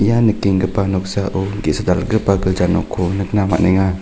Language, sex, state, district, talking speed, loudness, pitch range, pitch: Garo, male, Meghalaya, North Garo Hills, 135 wpm, -17 LUFS, 95-100 Hz, 95 Hz